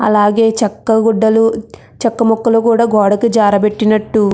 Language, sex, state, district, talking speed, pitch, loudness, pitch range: Telugu, female, Andhra Pradesh, Krishna, 125 wpm, 220 Hz, -12 LUFS, 210-225 Hz